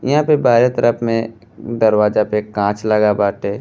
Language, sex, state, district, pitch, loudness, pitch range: Bhojpuri, male, Uttar Pradesh, Gorakhpur, 110 Hz, -16 LUFS, 105-120 Hz